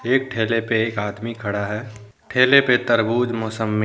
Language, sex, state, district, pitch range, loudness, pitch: Hindi, male, Jharkhand, Deoghar, 105-120 Hz, -20 LUFS, 115 Hz